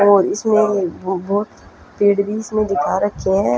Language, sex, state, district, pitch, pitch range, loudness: Hindi, female, Punjab, Fazilka, 200 Hz, 190-210 Hz, -18 LUFS